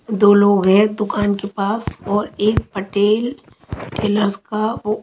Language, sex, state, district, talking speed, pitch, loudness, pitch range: Hindi, female, Haryana, Charkhi Dadri, 145 wpm, 205 Hz, -17 LUFS, 200-215 Hz